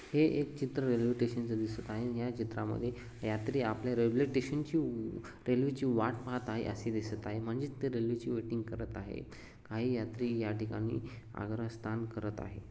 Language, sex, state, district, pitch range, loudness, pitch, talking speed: Marathi, male, Maharashtra, Sindhudurg, 110-125 Hz, -36 LUFS, 115 Hz, 175 wpm